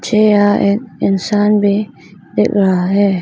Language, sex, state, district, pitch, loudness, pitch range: Hindi, female, Arunachal Pradesh, Papum Pare, 200 Hz, -14 LUFS, 190-210 Hz